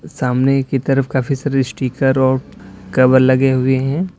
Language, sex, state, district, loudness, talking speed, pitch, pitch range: Hindi, male, Uttar Pradesh, Lalitpur, -15 LUFS, 155 wpm, 130 Hz, 130-135 Hz